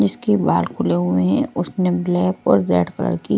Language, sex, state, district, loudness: Hindi, female, Punjab, Kapurthala, -19 LUFS